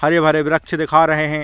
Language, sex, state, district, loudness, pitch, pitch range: Hindi, male, Chhattisgarh, Balrampur, -16 LUFS, 155 Hz, 155-160 Hz